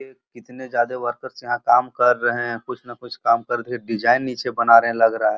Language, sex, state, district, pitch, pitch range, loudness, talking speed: Hindi, male, Uttar Pradesh, Muzaffarnagar, 120 Hz, 115-125 Hz, -20 LUFS, 245 wpm